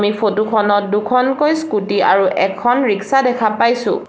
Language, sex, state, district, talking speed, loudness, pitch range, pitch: Assamese, female, Assam, Sonitpur, 145 wpm, -15 LUFS, 205-250 Hz, 215 Hz